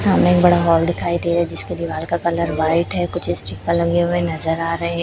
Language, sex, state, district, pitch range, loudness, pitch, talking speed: Hindi, male, Chhattisgarh, Raipur, 165-170 Hz, -18 LUFS, 170 Hz, 250 wpm